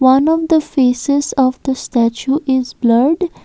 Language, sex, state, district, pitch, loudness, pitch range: English, female, Assam, Kamrup Metropolitan, 265 Hz, -15 LUFS, 255-290 Hz